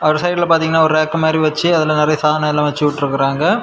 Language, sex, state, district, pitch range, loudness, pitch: Tamil, male, Tamil Nadu, Kanyakumari, 150-160 Hz, -15 LUFS, 155 Hz